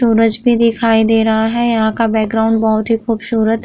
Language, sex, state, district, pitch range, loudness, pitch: Hindi, female, Uttar Pradesh, Muzaffarnagar, 220-230 Hz, -14 LUFS, 225 Hz